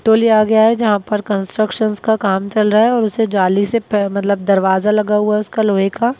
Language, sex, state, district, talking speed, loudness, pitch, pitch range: Hindi, female, Bihar, Gaya, 230 wpm, -15 LUFS, 210 Hz, 200-220 Hz